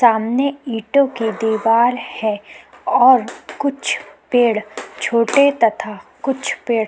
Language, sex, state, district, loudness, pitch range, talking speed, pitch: Hindi, female, Uttarakhand, Tehri Garhwal, -17 LUFS, 220-270 Hz, 115 wpm, 235 Hz